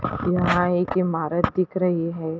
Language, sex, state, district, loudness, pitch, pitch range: Hindi, female, Uttar Pradesh, Hamirpur, -22 LUFS, 175 Hz, 165-180 Hz